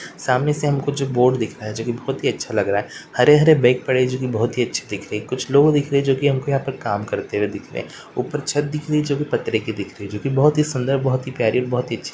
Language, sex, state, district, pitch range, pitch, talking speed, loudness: Hindi, male, Uttar Pradesh, Varanasi, 120-140 Hz, 130 Hz, 310 wpm, -20 LUFS